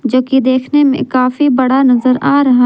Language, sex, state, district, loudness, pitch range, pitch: Hindi, female, Jharkhand, Garhwa, -11 LUFS, 255-270 Hz, 260 Hz